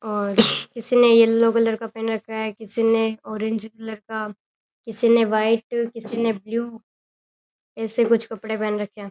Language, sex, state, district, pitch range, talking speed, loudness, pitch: Rajasthani, female, Rajasthan, Churu, 220-230 Hz, 170 wpm, -20 LUFS, 225 Hz